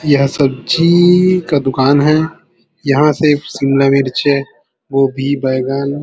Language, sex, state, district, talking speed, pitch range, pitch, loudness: Hindi, male, Chhattisgarh, Bilaspur, 120 wpm, 135-150 Hz, 140 Hz, -13 LUFS